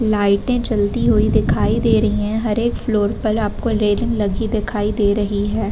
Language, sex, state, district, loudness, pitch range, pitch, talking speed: Hindi, female, Uttar Pradesh, Varanasi, -18 LUFS, 205-225 Hz, 215 Hz, 190 wpm